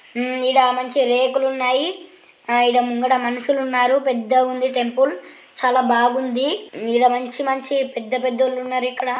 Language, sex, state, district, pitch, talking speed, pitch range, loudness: Telugu, female, Andhra Pradesh, Guntur, 255 Hz, 145 wpm, 245-265 Hz, -19 LUFS